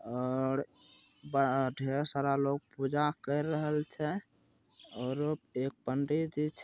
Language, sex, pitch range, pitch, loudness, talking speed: Bhojpuri, male, 135-150 Hz, 140 Hz, -34 LUFS, 110 wpm